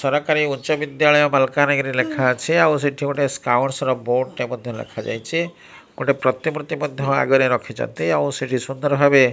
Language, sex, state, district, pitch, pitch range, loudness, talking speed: Odia, male, Odisha, Malkangiri, 140 Hz, 130-150 Hz, -20 LUFS, 155 wpm